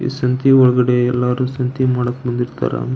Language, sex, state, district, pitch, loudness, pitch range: Kannada, male, Karnataka, Belgaum, 125 Hz, -16 LUFS, 125-130 Hz